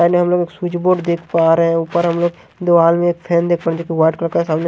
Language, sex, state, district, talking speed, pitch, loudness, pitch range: Hindi, male, Haryana, Jhajjar, 230 wpm, 170 Hz, -16 LUFS, 165-175 Hz